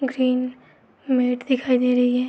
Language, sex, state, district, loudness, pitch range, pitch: Hindi, female, Uttar Pradesh, Gorakhpur, -21 LUFS, 250-260 Hz, 250 Hz